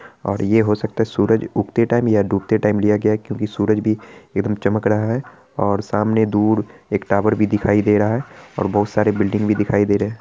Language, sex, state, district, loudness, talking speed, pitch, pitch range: Hindi, male, Bihar, Araria, -18 LUFS, 225 wpm, 105 Hz, 105-110 Hz